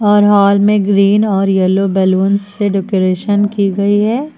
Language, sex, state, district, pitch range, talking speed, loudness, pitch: Hindi, female, Uttar Pradesh, Lucknow, 195-205 Hz, 165 wpm, -12 LUFS, 200 Hz